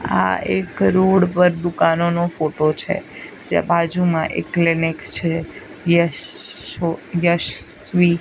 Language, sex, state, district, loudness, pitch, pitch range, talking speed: Gujarati, female, Gujarat, Gandhinagar, -18 LUFS, 170 Hz, 160-175 Hz, 110 wpm